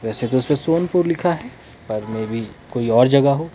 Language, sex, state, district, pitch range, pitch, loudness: Hindi, male, Himachal Pradesh, Shimla, 115-160 Hz, 125 Hz, -19 LUFS